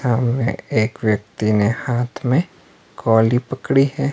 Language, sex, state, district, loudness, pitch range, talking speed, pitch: Hindi, male, Himachal Pradesh, Shimla, -19 LUFS, 110-135 Hz, 130 wpm, 120 Hz